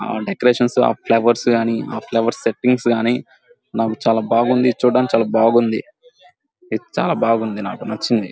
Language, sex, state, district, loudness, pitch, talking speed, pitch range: Telugu, male, Andhra Pradesh, Guntur, -18 LUFS, 120 Hz, 135 wpm, 115-125 Hz